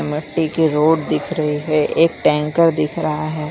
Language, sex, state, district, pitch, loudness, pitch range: Hindi, male, Gujarat, Valsad, 155 Hz, -17 LUFS, 150-160 Hz